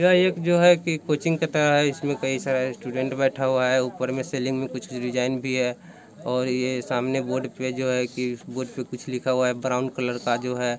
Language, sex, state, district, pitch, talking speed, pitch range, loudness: Hindi, male, Bihar, East Champaran, 130 Hz, 240 wpm, 125-140 Hz, -24 LUFS